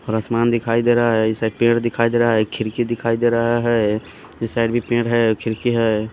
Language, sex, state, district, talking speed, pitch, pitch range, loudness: Hindi, male, Bihar, West Champaran, 245 wpm, 115 Hz, 110-120 Hz, -19 LUFS